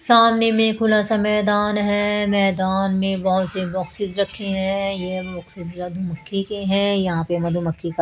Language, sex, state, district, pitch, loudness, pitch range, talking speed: Hindi, female, Haryana, Jhajjar, 195 Hz, -20 LUFS, 185-205 Hz, 150 wpm